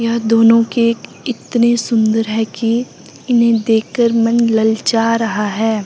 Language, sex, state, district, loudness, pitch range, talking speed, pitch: Hindi, female, Himachal Pradesh, Shimla, -14 LUFS, 225-235 Hz, 145 wpm, 230 Hz